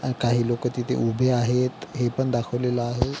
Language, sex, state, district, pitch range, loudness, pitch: Marathi, male, Maharashtra, Pune, 120-125 Hz, -24 LUFS, 125 Hz